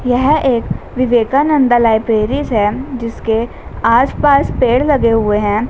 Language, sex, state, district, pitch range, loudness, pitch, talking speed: Hindi, female, Haryana, Rohtak, 225-270 Hz, -14 LUFS, 245 Hz, 125 wpm